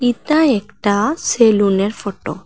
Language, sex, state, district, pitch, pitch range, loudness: Bengali, female, Assam, Hailakandi, 210 Hz, 200-245 Hz, -16 LUFS